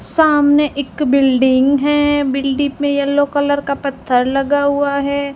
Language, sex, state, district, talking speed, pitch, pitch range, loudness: Hindi, female, Rajasthan, Jaisalmer, 145 wpm, 285 Hz, 275-285 Hz, -15 LUFS